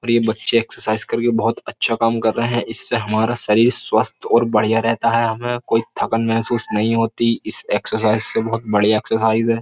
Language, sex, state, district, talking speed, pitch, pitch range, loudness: Hindi, male, Uttar Pradesh, Jyotiba Phule Nagar, 200 wpm, 115 Hz, 110-115 Hz, -18 LUFS